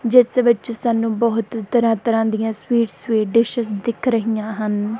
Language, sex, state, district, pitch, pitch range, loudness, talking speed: Punjabi, female, Punjab, Kapurthala, 225 Hz, 220-235 Hz, -19 LUFS, 155 wpm